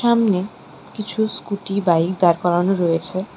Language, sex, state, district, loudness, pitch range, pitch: Bengali, female, West Bengal, Darjeeling, -19 LUFS, 175-210 Hz, 190 Hz